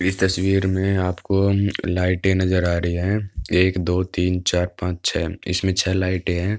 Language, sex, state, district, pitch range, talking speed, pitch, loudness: Hindi, male, Uttar Pradesh, Budaun, 90-95 Hz, 180 wpm, 90 Hz, -21 LUFS